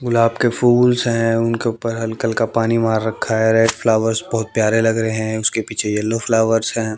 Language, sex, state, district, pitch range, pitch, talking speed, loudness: Hindi, male, Haryana, Jhajjar, 110-115 Hz, 115 Hz, 205 wpm, -17 LUFS